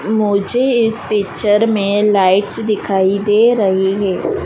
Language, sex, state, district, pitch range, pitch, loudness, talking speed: Hindi, female, Madhya Pradesh, Dhar, 195-220 Hz, 205 Hz, -14 LUFS, 120 wpm